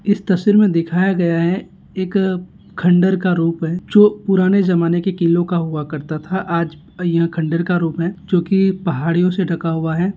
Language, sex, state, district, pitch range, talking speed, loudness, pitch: Hindi, male, Rajasthan, Nagaur, 170-190 Hz, 190 wpm, -17 LUFS, 180 Hz